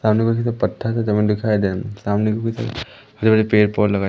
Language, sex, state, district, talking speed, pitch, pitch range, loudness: Hindi, male, Madhya Pradesh, Umaria, 190 wpm, 110 Hz, 105-115 Hz, -19 LUFS